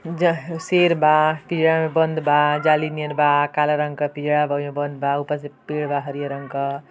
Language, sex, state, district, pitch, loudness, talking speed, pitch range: Bhojpuri, female, Uttar Pradesh, Ghazipur, 150 Hz, -20 LUFS, 225 wpm, 145-160 Hz